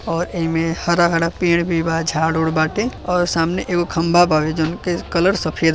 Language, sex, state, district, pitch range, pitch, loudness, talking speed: Bhojpuri, male, Uttar Pradesh, Deoria, 165-175 Hz, 165 Hz, -18 LUFS, 210 wpm